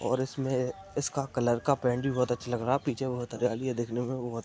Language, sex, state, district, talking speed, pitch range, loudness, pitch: Hindi, male, Bihar, Purnia, 255 wpm, 120-135 Hz, -30 LUFS, 125 Hz